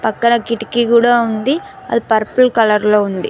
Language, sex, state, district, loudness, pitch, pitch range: Telugu, female, Telangana, Mahabubabad, -14 LUFS, 235 Hz, 220-240 Hz